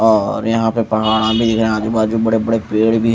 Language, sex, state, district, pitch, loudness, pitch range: Hindi, male, Odisha, Malkangiri, 110 Hz, -16 LUFS, 110-115 Hz